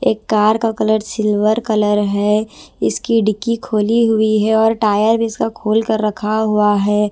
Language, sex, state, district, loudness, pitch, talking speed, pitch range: Hindi, female, Bihar, West Champaran, -16 LUFS, 215 Hz, 175 wpm, 210-225 Hz